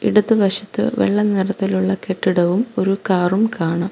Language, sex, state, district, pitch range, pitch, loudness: Malayalam, female, Kerala, Kollam, 185-210 Hz, 195 Hz, -18 LUFS